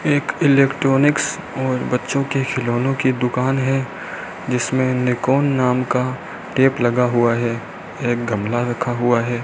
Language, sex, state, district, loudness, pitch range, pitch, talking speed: Hindi, male, Rajasthan, Bikaner, -19 LUFS, 120-135 Hz, 125 Hz, 140 wpm